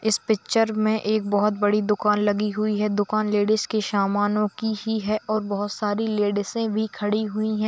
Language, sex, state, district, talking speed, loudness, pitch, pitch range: Hindi, female, Bihar, Kishanganj, 195 wpm, -23 LUFS, 210 Hz, 205-215 Hz